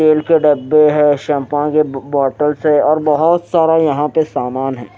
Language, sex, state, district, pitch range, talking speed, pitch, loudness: Hindi, male, Himachal Pradesh, Shimla, 145-155 Hz, 180 wpm, 150 Hz, -14 LUFS